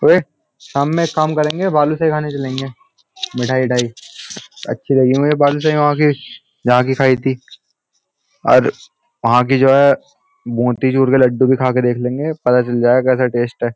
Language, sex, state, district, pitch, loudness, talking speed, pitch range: Hindi, male, Uttar Pradesh, Jyotiba Phule Nagar, 135 Hz, -15 LUFS, 180 wpm, 125-150 Hz